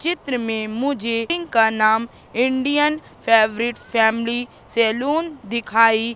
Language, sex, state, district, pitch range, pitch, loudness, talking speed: Hindi, female, Madhya Pradesh, Katni, 225-275 Hz, 235 Hz, -20 LUFS, 95 wpm